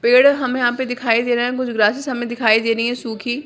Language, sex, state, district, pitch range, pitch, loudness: Hindi, female, Bihar, Jamui, 230-255 Hz, 245 Hz, -18 LUFS